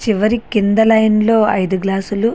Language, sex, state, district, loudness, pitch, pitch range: Telugu, female, Andhra Pradesh, Srikakulam, -14 LUFS, 215 Hz, 200-225 Hz